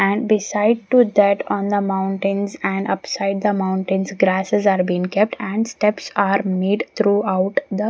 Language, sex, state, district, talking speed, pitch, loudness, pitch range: English, female, Maharashtra, Gondia, 165 wpm, 200 Hz, -19 LUFS, 195-210 Hz